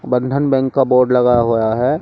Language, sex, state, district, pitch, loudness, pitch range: Hindi, male, Delhi, New Delhi, 125 Hz, -15 LUFS, 120-135 Hz